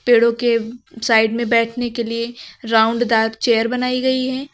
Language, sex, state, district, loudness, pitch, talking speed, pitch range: Hindi, female, Uttar Pradesh, Lucknow, -18 LUFS, 235 Hz, 170 wpm, 230-245 Hz